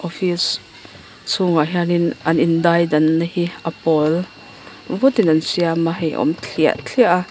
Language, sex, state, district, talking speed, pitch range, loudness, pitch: Mizo, female, Mizoram, Aizawl, 140 wpm, 160-175 Hz, -18 LUFS, 170 Hz